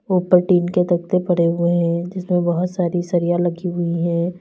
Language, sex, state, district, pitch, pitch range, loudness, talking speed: Hindi, female, Uttar Pradesh, Lalitpur, 175 Hz, 170-180 Hz, -19 LUFS, 190 wpm